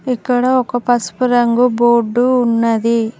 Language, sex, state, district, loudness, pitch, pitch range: Telugu, female, Telangana, Mahabubabad, -14 LUFS, 240 Hz, 230-250 Hz